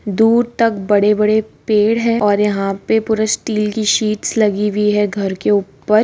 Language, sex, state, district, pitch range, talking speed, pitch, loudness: Hindi, female, Bihar, Kishanganj, 205-220 Hz, 180 wpm, 210 Hz, -15 LUFS